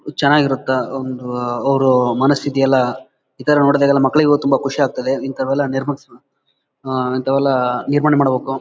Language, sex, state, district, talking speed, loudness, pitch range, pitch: Kannada, male, Karnataka, Bellary, 120 wpm, -16 LUFS, 130-140 Hz, 135 Hz